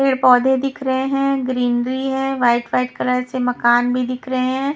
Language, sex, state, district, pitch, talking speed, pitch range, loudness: Hindi, female, Punjab, Kapurthala, 255 Hz, 200 wpm, 250-265 Hz, -18 LUFS